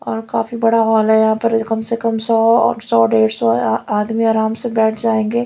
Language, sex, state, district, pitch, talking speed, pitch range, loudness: Hindi, female, Delhi, New Delhi, 225 Hz, 210 wpm, 220-230 Hz, -15 LUFS